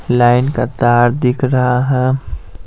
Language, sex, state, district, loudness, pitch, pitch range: Hindi, male, Bihar, Patna, -14 LUFS, 125 Hz, 120-130 Hz